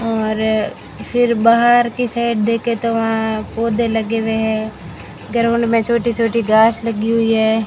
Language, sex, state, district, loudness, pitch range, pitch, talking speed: Hindi, female, Rajasthan, Bikaner, -16 LUFS, 220-235 Hz, 230 Hz, 150 wpm